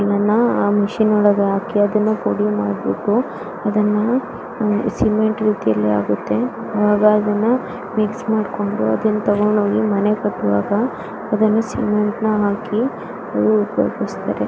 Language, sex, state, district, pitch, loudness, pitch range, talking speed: Kannada, female, Karnataka, Bellary, 210 Hz, -18 LUFS, 205-215 Hz, 95 wpm